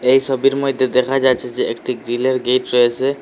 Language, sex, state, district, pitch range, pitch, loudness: Bengali, male, Assam, Hailakandi, 125-135 Hz, 130 Hz, -17 LUFS